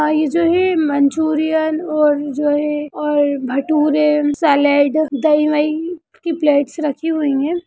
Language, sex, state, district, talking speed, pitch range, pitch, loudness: Hindi, female, Bihar, Gaya, 110 wpm, 290-315 Hz, 300 Hz, -16 LUFS